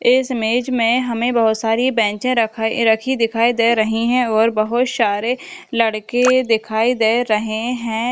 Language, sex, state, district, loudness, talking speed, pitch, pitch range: Hindi, female, Uttar Pradesh, Jalaun, -17 LUFS, 155 wpm, 230 Hz, 220-245 Hz